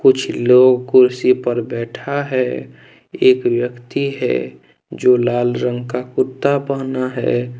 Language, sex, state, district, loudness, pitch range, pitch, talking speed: Hindi, male, Jharkhand, Deoghar, -17 LUFS, 120-130 Hz, 125 Hz, 125 wpm